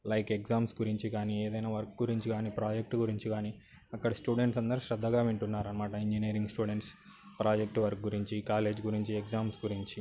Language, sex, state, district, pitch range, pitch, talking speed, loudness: Telugu, male, Telangana, Karimnagar, 105-115 Hz, 110 Hz, 130 wpm, -34 LUFS